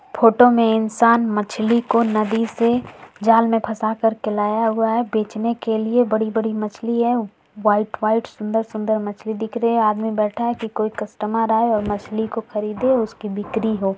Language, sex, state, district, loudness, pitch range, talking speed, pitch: Hindi, female, Uttar Pradesh, Varanasi, -20 LUFS, 215-230 Hz, 185 wpm, 220 Hz